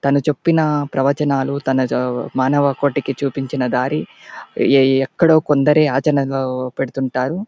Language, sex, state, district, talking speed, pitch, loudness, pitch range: Telugu, male, Andhra Pradesh, Anantapur, 105 wpm, 140 Hz, -17 LUFS, 135-145 Hz